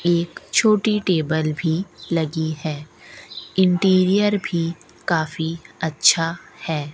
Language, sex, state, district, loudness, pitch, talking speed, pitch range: Hindi, female, Rajasthan, Bikaner, -20 LUFS, 170 Hz, 95 wpm, 160-185 Hz